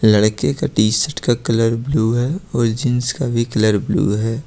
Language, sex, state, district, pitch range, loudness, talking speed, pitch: Hindi, male, Jharkhand, Ranchi, 110-130 Hz, -17 LUFS, 190 wpm, 115 Hz